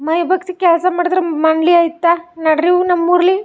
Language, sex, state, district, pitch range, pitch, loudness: Kannada, female, Karnataka, Chamarajanagar, 335-360 Hz, 345 Hz, -14 LUFS